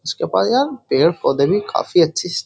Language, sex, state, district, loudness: Hindi, male, Uttar Pradesh, Jyotiba Phule Nagar, -17 LUFS